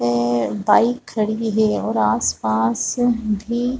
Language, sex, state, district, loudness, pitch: Hindi, female, Chhattisgarh, Balrampur, -19 LUFS, 210 Hz